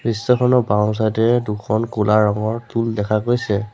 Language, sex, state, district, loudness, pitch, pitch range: Assamese, male, Assam, Sonitpur, -18 LUFS, 110 Hz, 105-115 Hz